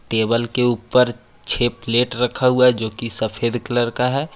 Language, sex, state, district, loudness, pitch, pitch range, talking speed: Hindi, male, Jharkhand, Ranchi, -18 LUFS, 120 Hz, 115-125 Hz, 195 wpm